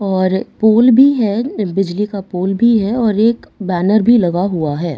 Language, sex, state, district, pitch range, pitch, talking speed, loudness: Hindi, female, Bihar, Katihar, 185-230 Hz, 205 Hz, 195 wpm, -14 LUFS